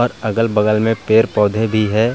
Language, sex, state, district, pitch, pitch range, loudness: Hindi, male, Bihar, Vaishali, 110 Hz, 105-115 Hz, -16 LUFS